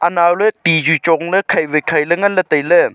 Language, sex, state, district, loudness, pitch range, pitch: Wancho, male, Arunachal Pradesh, Longding, -14 LUFS, 160-185 Hz, 170 Hz